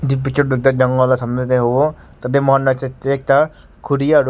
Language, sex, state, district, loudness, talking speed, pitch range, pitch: Nagamese, male, Nagaland, Kohima, -16 LUFS, 165 wpm, 130-140 Hz, 135 Hz